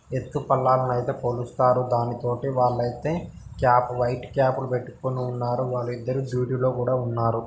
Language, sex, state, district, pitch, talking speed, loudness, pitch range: Telugu, male, Telangana, Nalgonda, 125 Hz, 150 wpm, -24 LUFS, 120-130 Hz